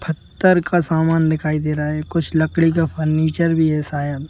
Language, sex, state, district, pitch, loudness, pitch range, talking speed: Hindi, male, Madhya Pradesh, Bhopal, 160 Hz, -18 LUFS, 155-165 Hz, 195 wpm